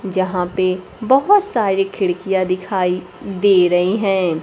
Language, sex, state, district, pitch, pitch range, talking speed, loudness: Hindi, female, Bihar, Kaimur, 190 Hz, 185-200 Hz, 120 wpm, -17 LUFS